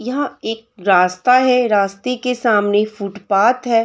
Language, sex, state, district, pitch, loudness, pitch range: Hindi, female, Bihar, Samastipur, 225 Hz, -16 LUFS, 200-250 Hz